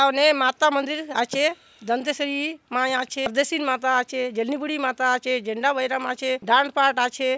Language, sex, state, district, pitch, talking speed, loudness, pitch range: Halbi, female, Chhattisgarh, Bastar, 260 Hz, 155 wpm, -23 LUFS, 255-285 Hz